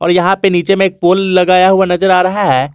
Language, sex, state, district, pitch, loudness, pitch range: Hindi, male, Jharkhand, Garhwa, 185 Hz, -11 LUFS, 180-195 Hz